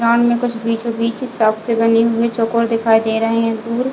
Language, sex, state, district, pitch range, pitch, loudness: Hindi, female, Chhattisgarh, Bilaspur, 225-235 Hz, 230 Hz, -16 LUFS